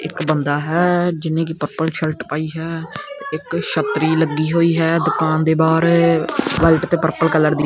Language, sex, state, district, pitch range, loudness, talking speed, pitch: Punjabi, male, Punjab, Kapurthala, 155-165 Hz, -17 LUFS, 170 wpm, 160 Hz